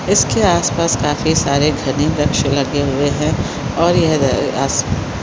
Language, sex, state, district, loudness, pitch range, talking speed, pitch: Hindi, female, Chhattisgarh, Korba, -16 LUFS, 140-155 Hz, 135 wpm, 145 Hz